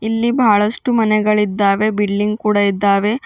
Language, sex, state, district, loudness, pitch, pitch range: Kannada, female, Karnataka, Bidar, -15 LUFS, 210 Hz, 205-220 Hz